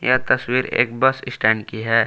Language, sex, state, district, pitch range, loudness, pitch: Hindi, male, Jharkhand, Palamu, 115-130 Hz, -19 LUFS, 120 Hz